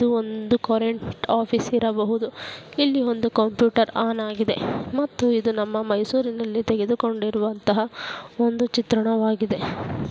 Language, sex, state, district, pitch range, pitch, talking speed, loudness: Kannada, female, Karnataka, Mysore, 220-235 Hz, 230 Hz, 105 wpm, -23 LUFS